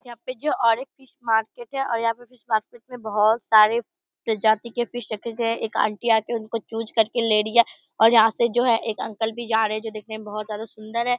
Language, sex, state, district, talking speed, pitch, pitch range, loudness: Hindi, female, Bihar, Purnia, 270 wpm, 230 Hz, 220-240 Hz, -23 LUFS